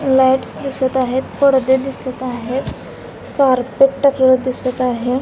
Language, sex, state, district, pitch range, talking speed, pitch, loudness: Marathi, female, Maharashtra, Dhule, 255-270 Hz, 105 wpm, 260 Hz, -16 LUFS